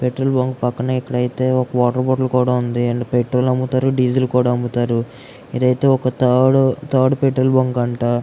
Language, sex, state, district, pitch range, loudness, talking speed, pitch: Telugu, female, Andhra Pradesh, Guntur, 125-130 Hz, -17 LUFS, 165 wpm, 125 Hz